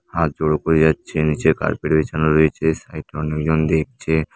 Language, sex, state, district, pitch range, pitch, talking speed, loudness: Bengali, male, West Bengal, Dakshin Dinajpur, 75-80 Hz, 80 Hz, 165 wpm, -19 LUFS